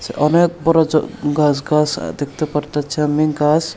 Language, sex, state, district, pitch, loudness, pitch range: Bengali, male, Tripura, Unakoti, 150 Hz, -17 LUFS, 145-155 Hz